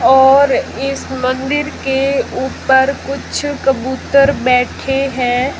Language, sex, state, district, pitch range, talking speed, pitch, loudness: Hindi, female, Rajasthan, Jaisalmer, 260-275 Hz, 95 wpm, 270 Hz, -14 LUFS